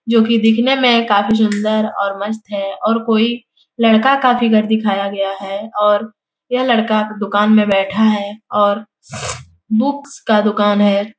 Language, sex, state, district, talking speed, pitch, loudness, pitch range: Hindi, female, Bihar, Jahanabad, 155 wpm, 215 Hz, -15 LUFS, 205-230 Hz